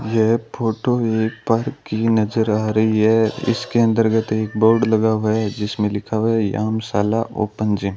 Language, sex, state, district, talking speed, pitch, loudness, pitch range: Hindi, male, Rajasthan, Bikaner, 180 wpm, 110 Hz, -19 LUFS, 110-115 Hz